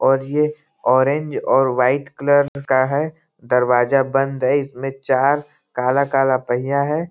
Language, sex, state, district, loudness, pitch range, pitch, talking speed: Hindi, male, Uttar Pradesh, Ghazipur, -18 LUFS, 130-145 Hz, 135 Hz, 135 wpm